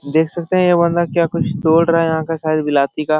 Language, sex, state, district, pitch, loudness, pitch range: Hindi, male, Bihar, Jahanabad, 165 Hz, -16 LUFS, 155-170 Hz